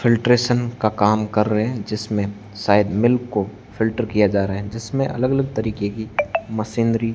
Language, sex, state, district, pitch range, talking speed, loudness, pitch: Hindi, male, Rajasthan, Barmer, 105-120 Hz, 175 wpm, -20 LUFS, 110 Hz